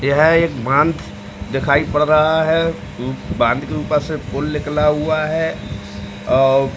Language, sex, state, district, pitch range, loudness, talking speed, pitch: Hindi, male, Uttar Pradesh, Deoria, 125-155 Hz, -17 LUFS, 150 wpm, 150 Hz